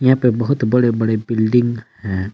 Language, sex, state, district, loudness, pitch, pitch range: Hindi, male, Jharkhand, Palamu, -17 LUFS, 115 Hz, 110-125 Hz